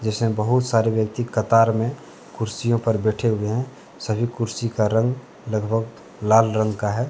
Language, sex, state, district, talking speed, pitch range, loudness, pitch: Hindi, male, Jharkhand, Deoghar, 170 wpm, 110-115 Hz, -22 LUFS, 115 Hz